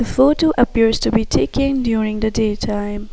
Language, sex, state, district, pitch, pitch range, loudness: English, female, Assam, Sonitpur, 225 Hz, 215-265 Hz, -17 LUFS